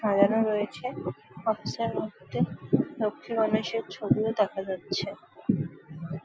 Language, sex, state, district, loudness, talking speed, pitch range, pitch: Bengali, female, West Bengal, Jalpaiguri, -29 LUFS, 95 wpm, 190-225 Hz, 210 Hz